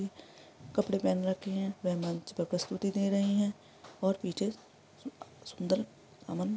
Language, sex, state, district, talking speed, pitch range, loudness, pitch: Hindi, female, Bihar, East Champaran, 135 wpm, 180-200 Hz, -33 LUFS, 195 Hz